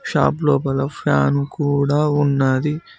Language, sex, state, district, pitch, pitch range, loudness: Telugu, male, Telangana, Mahabubabad, 140 Hz, 135-150 Hz, -18 LUFS